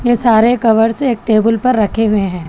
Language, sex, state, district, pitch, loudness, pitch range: Hindi, female, Telangana, Hyderabad, 225 Hz, -13 LUFS, 220-240 Hz